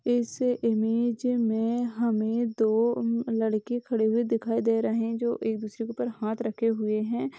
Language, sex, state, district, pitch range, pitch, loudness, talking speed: Hindi, female, Uttar Pradesh, Gorakhpur, 220-240 Hz, 230 Hz, -27 LUFS, 155 wpm